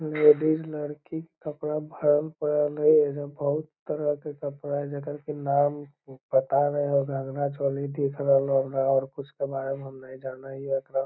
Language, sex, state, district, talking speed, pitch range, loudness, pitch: Magahi, male, Bihar, Lakhisarai, 170 wpm, 135-150 Hz, -26 LUFS, 145 Hz